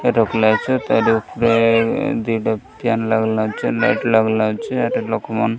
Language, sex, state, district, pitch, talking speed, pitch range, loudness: Odia, male, Odisha, Malkangiri, 115 Hz, 105 wpm, 110-115 Hz, -18 LUFS